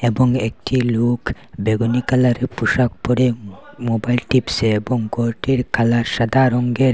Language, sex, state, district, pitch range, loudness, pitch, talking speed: Bengali, male, Assam, Hailakandi, 115-125 Hz, -18 LUFS, 120 Hz, 120 wpm